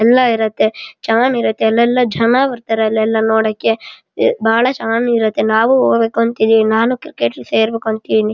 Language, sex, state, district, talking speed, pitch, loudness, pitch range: Kannada, male, Karnataka, Shimoga, 135 wpm, 225 Hz, -14 LUFS, 220-235 Hz